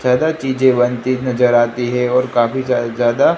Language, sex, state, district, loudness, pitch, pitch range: Hindi, male, Gujarat, Gandhinagar, -16 LUFS, 125 Hz, 120-130 Hz